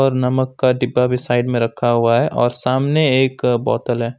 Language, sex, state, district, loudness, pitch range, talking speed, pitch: Hindi, male, West Bengal, Alipurduar, -17 LUFS, 120-130 Hz, 200 wpm, 125 Hz